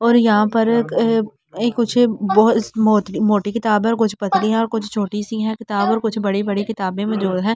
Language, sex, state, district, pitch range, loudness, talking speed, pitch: Hindi, female, Delhi, New Delhi, 205-225 Hz, -18 LUFS, 185 wpm, 215 Hz